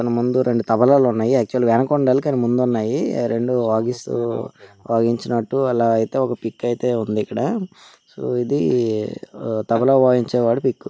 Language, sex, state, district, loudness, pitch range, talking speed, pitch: Telugu, male, Telangana, Karimnagar, -19 LUFS, 115-130 Hz, 150 wpm, 120 Hz